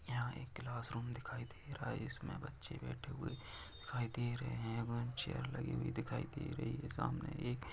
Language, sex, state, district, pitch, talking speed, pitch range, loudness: Hindi, male, Uttar Pradesh, Varanasi, 120 Hz, 200 wpm, 115-125 Hz, -44 LUFS